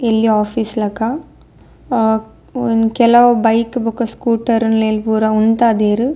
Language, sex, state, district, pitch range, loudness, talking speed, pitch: Tulu, female, Karnataka, Dakshina Kannada, 220-235 Hz, -15 LUFS, 105 wpm, 225 Hz